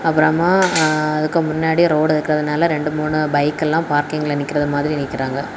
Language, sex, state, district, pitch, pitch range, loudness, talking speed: Tamil, female, Tamil Nadu, Kanyakumari, 155 Hz, 150-160 Hz, -17 LUFS, 150 wpm